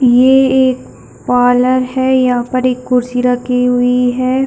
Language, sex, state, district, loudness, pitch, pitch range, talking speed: Hindi, female, Chhattisgarh, Bilaspur, -12 LUFS, 250 Hz, 245-255 Hz, 150 wpm